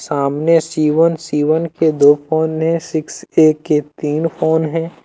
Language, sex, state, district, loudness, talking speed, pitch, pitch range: Hindi, male, Jharkhand, Deoghar, -15 LUFS, 180 wpm, 160 Hz, 150-165 Hz